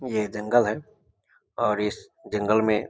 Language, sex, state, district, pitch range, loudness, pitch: Maithili, male, Bihar, Samastipur, 105-110 Hz, -25 LUFS, 105 Hz